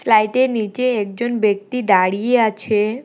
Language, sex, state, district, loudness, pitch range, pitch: Bengali, female, West Bengal, Alipurduar, -17 LUFS, 210-245 Hz, 220 Hz